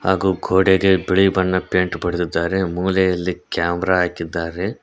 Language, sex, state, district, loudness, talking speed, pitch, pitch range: Kannada, male, Karnataka, Koppal, -19 LUFS, 110 wpm, 90 Hz, 85-95 Hz